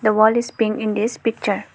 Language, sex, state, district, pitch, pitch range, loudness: English, female, Arunachal Pradesh, Lower Dibang Valley, 220 Hz, 215-230 Hz, -19 LUFS